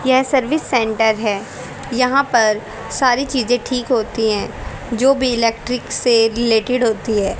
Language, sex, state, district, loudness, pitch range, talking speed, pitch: Hindi, female, Haryana, Charkhi Dadri, -17 LUFS, 225-255 Hz, 145 wpm, 240 Hz